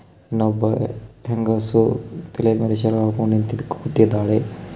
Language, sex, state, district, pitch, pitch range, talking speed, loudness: Kannada, male, Karnataka, Koppal, 110 Hz, 110-115 Hz, 90 wpm, -20 LUFS